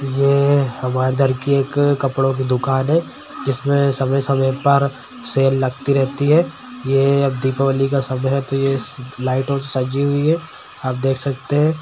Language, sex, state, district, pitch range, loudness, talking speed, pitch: Hindi, male, Bihar, Madhepura, 130-140 Hz, -17 LUFS, 170 wpm, 135 Hz